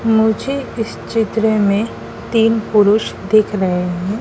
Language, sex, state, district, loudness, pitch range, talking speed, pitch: Hindi, female, Madhya Pradesh, Dhar, -16 LUFS, 205-225 Hz, 130 wpm, 220 Hz